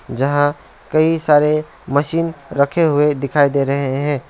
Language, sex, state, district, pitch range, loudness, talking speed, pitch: Hindi, male, West Bengal, Alipurduar, 140-155 Hz, -16 LUFS, 125 wpm, 145 Hz